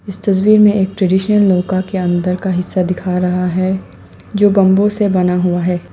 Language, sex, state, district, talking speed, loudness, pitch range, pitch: Hindi, female, Assam, Sonitpur, 190 wpm, -14 LUFS, 180-200 Hz, 185 Hz